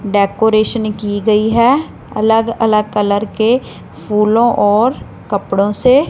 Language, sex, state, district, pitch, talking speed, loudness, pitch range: Hindi, female, Punjab, Fazilka, 215 Hz, 120 wpm, -14 LUFS, 205-230 Hz